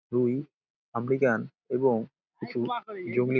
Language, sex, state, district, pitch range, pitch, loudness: Bengali, male, West Bengal, Dakshin Dinajpur, 120-140 Hz, 130 Hz, -29 LUFS